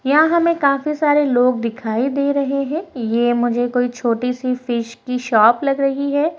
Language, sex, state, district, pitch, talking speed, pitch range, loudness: Hindi, female, Uttar Pradesh, Jalaun, 255 Hz, 190 wpm, 240-285 Hz, -18 LUFS